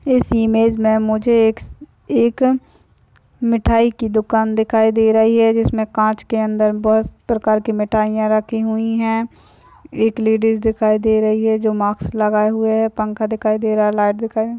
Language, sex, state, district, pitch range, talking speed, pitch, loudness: Hindi, female, Chhattisgarh, Kabirdham, 215-225 Hz, 175 wpm, 220 Hz, -17 LUFS